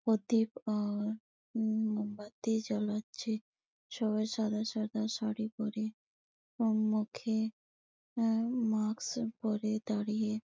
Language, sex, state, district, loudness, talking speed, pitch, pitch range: Bengali, female, West Bengal, Malda, -35 LUFS, 105 wpm, 220 Hz, 215-225 Hz